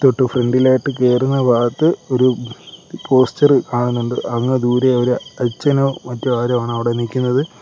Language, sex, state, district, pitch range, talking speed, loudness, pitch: Malayalam, male, Kerala, Kollam, 120-130 Hz, 125 wpm, -16 LUFS, 125 Hz